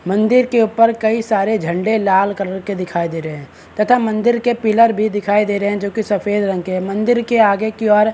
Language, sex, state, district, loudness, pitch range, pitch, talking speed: Hindi, male, Maharashtra, Chandrapur, -16 LUFS, 195-220 Hz, 210 Hz, 250 wpm